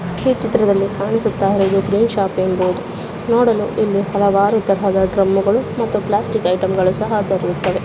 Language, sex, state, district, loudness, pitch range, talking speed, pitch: Kannada, female, Karnataka, Shimoga, -17 LUFS, 190-210 Hz, 130 wpm, 200 Hz